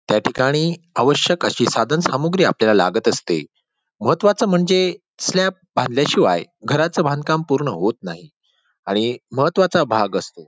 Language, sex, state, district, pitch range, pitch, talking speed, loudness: Marathi, male, Maharashtra, Dhule, 125-180 Hz, 155 Hz, 125 wpm, -18 LUFS